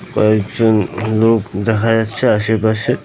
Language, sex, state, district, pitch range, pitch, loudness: Bengali, male, West Bengal, North 24 Parganas, 110-115 Hz, 110 Hz, -15 LUFS